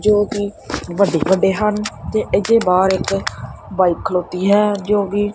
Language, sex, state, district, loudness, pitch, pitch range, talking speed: Punjabi, male, Punjab, Kapurthala, -17 LUFS, 205 Hz, 190-210 Hz, 135 wpm